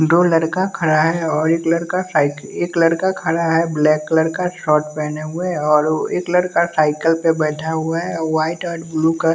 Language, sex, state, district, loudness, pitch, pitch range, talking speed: Hindi, male, Bihar, West Champaran, -18 LUFS, 165 Hz, 155-170 Hz, 205 wpm